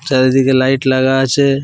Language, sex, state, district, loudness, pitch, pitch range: Bengali, male, Jharkhand, Jamtara, -13 LUFS, 135 Hz, 130-135 Hz